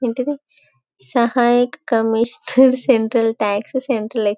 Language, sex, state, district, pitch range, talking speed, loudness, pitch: Telugu, female, Telangana, Karimnagar, 220-255 Hz, 110 wpm, -17 LUFS, 235 Hz